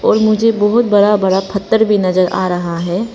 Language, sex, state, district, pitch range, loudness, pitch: Hindi, female, Arunachal Pradesh, Papum Pare, 185-220 Hz, -13 LUFS, 205 Hz